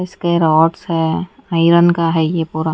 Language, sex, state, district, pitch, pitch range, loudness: Hindi, female, Odisha, Nuapada, 165 Hz, 160-170 Hz, -15 LUFS